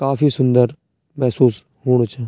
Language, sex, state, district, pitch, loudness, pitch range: Garhwali, male, Uttarakhand, Tehri Garhwal, 125 Hz, -17 LUFS, 120-135 Hz